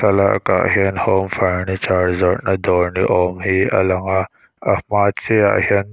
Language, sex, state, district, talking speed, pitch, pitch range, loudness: Mizo, male, Mizoram, Aizawl, 190 wpm, 95 Hz, 90-100 Hz, -17 LUFS